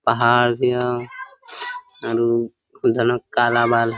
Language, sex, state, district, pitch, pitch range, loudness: Hindi, male, Jharkhand, Sahebganj, 120 Hz, 115-125 Hz, -19 LUFS